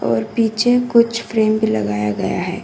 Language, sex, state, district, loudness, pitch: Hindi, female, Karnataka, Koppal, -17 LUFS, 220 Hz